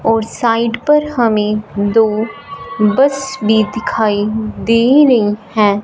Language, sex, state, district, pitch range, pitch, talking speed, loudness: Hindi, female, Punjab, Fazilka, 215-250 Hz, 225 Hz, 115 wpm, -14 LUFS